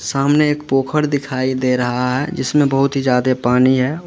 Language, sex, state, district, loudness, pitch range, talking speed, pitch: Hindi, male, Uttar Pradesh, Lalitpur, -16 LUFS, 125-145 Hz, 190 wpm, 135 Hz